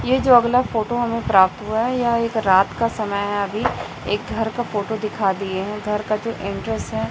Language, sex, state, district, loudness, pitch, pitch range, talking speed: Hindi, female, Chhattisgarh, Raipur, -20 LUFS, 220 Hz, 205-230 Hz, 230 wpm